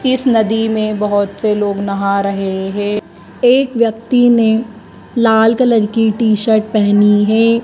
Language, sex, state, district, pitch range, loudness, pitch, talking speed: Hindi, male, Madhya Pradesh, Dhar, 205-230 Hz, -13 LUFS, 220 Hz, 140 wpm